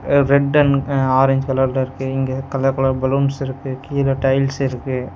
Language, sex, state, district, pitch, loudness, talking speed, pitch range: Tamil, male, Tamil Nadu, Nilgiris, 135 Hz, -18 LUFS, 175 wpm, 130-140 Hz